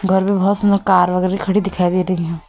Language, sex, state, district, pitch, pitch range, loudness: Hindi, female, Goa, North and South Goa, 190 Hz, 180-200 Hz, -16 LUFS